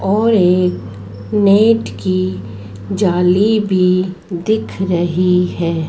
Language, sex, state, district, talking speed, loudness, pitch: Hindi, male, Madhya Pradesh, Dhar, 90 wpm, -15 LUFS, 180 Hz